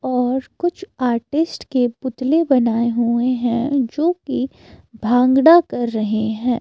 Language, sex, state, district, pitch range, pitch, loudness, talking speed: Hindi, male, Himachal Pradesh, Shimla, 235-280 Hz, 250 Hz, -18 LUFS, 125 wpm